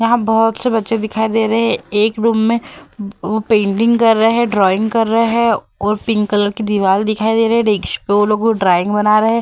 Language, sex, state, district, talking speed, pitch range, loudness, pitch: Hindi, female, Bihar, Vaishali, 230 wpm, 210-230 Hz, -15 LUFS, 220 Hz